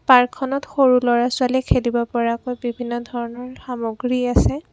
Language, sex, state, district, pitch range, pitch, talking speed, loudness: Assamese, female, Assam, Kamrup Metropolitan, 240-255 Hz, 245 Hz, 115 wpm, -20 LUFS